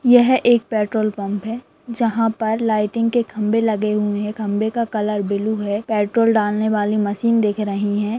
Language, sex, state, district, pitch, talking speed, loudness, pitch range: Hindi, female, Bihar, Madhepura, 215 Hz, 185 wpm, -19 LUFS, 210-230 Hz